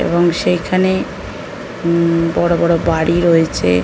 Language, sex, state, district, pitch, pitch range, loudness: Bengali, female, West Bengal, North 24 Parganas, 170 Hz, 165-175 Hz, -15 LUFS